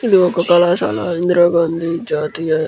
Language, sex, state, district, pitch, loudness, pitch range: Telugu, male, Andhra Pradesh, Krishna, 170 Hz, -15 LUFS, 165-175 Hz